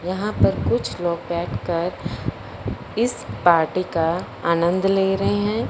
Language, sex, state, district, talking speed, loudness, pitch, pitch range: Hindi, male, Punjab, Fazilka, 125 wpm, -22 LUFS, 180 Hz, 170-195 Hz